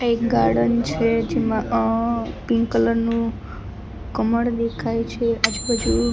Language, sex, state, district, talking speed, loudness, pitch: Gujarati, female, Gujarat, Gandhinagar, 135 wpm, -21 LUFS, 220 Hz